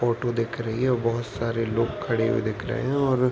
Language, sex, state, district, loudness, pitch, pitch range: Hindi, male, Uttar Pradesh, Varanasi, -25 LUFS, 120 Hz, 115-125 Hz